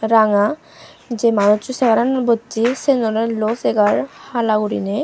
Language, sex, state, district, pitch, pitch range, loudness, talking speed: Chakma, female, Tripura, Unakoti, 230 Hz, 215-255 Hz, -17 LUFS, 130 wpm